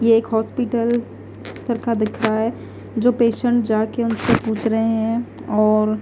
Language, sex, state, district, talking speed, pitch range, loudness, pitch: Hindi, female, Punjab, Fazilka, 130 wpm, 220-235 Hz, -20 LUFS, 225 Hz